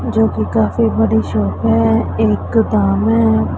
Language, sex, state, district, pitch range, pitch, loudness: Hindi, male, Punjab, Pathankot, 105-110 Hz, 110 Hz, -15 LUFS